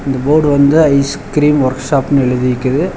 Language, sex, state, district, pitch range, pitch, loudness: Tamil, male, Tamil Nadu, Chennai, 130-145 Hz, 140 Hz, -12 LUFS